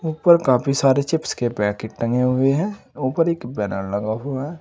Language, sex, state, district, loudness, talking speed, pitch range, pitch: Hindi, male, Uttar Pradesh, Saharanpur, -20 LUFS, 195 wpm, 115-160 Hz, 135 Hz